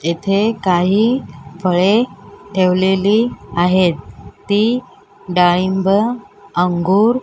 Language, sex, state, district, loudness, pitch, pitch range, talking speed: Marathi, female, Maharashtra, Mumbai Suburban, -16 LUFS, 195 Hz, 180-210 Hz, 75 wpm